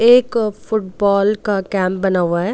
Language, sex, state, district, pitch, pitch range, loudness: Hindi, female, Goa, North and South Goa, 200 Hz, 190-220 Hz, -17 LUFS